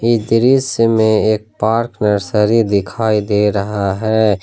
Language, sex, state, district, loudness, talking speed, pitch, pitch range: Hindi, male, Jharkhand, Ranchi, -15 LUFS, 135 wpm, 110 Hz, 105-115 Hz